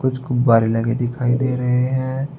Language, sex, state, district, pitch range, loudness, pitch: Hindi, male, Uttar Pradesh, Saharanpur, 120-130 Hz, -19 LUFS, 125 Hz